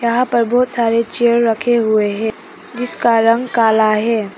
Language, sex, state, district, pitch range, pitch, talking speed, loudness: Hindi, female, Arunachal Pradesh, Papum Pare, 220-240 Hz, 230 Hz, 165 wpm, -15 LUFS